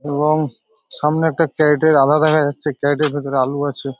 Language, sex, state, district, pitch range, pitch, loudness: Bengali, male, West Bengal, North 24 Parganas, 140-155 Hz, 150 Hz, -17 LUFS